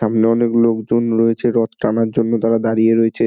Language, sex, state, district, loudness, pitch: Bengali, male, West Bengal, Dakshin Dinajpur, -16 LUFS, 115 Hz